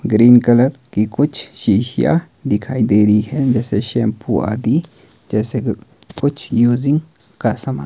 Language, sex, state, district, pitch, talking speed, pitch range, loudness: Hindi, male, Himachal Pradesh, Shimla, 120 Hz, 145 wpm, 110-140 Hz, -16 LUFS